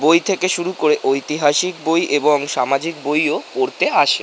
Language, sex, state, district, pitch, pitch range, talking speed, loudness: Bengali, male, West Bengal, North 24 Parganas, 155 Hz, 145-175 Hz, 170 wpm, -17 LUFS